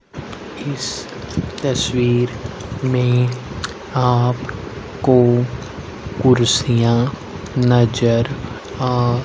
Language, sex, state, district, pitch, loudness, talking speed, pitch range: Hindi, male, Haryana, Rohtak, 125 Hz, -18 LUFS, 45 wpm, 120-125 Hz